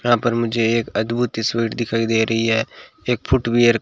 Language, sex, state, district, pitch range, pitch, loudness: Hindi, male, Rajasthan, Bikaner, 115-120 Hz, 115 Hz, -19 LUFS